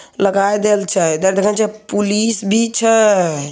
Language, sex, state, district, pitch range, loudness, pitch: Hindi, male, Bihar, Begusarai, 195-215 Hz, -15 LUFS, 205 Hz